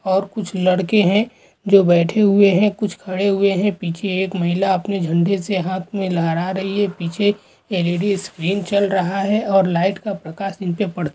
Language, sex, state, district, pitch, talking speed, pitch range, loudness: Hindi, male, Andhra Pradesh, Srikakulam, 195 Hz, 175 wpm, 180-200 Hz, -18 LUFS